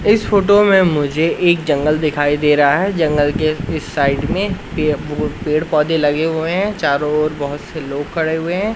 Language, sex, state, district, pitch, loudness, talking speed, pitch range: Hindi, male, Madhya Pradesh, Katni, 155 Hz, -16 LUFS, 190 wpm, 145-175 Hz